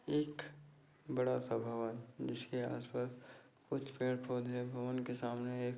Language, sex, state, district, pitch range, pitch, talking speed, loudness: Hindi, male, Chhattisgarh, Bastar, 120-125 Hz, 125 Hz, 155 wpm, -41 LUFS